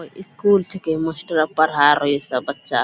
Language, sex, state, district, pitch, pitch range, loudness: Angika, female, Bihar, Bhagalpur, 160 Hz, 145-180 Hz, -19 LUFS